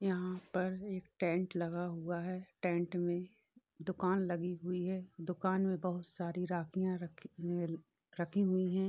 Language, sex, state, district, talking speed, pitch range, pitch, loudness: Hindi, male, Uttar Pradesh, Varanasi, 155 wpm, 175-185 Hz, 180 Hz, -38 LUFS